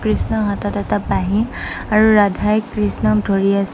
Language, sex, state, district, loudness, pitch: Assamese, female, Assam, Sonitpur, -17 LUFS, 200 Hz